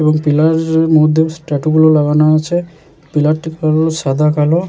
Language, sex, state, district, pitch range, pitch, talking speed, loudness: Bengali, male, West Bengal, Jalpaiguri, 150-160 Hz, 155 Hz, 155 wpm, -13 LUFS